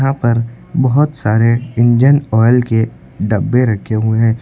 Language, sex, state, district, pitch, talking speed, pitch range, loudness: Hindi, male, Uttar Pradesh, Lucknow, 115 Hz, 150 wpm, 110-130 Hz, -14 LUFS